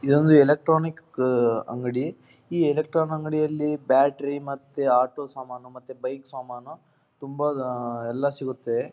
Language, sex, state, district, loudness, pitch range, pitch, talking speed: Kannada, male, Karnataka, Dharwad, -24 LUFS, 125-150 Hz, 140 Hz, 120 wpm